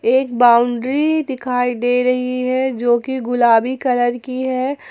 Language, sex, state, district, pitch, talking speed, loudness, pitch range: Hindi, female, Jharkhand, Ranchi, 250 Hz, 145 wpm, -17 LUFS, 245-260 Hz